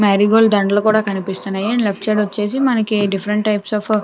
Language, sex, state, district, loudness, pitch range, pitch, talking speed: Telugu, female, Andhra Pradesh, Chittoor, -16 LUFS, 200-215 Hz, 210 Hz, 195 wpm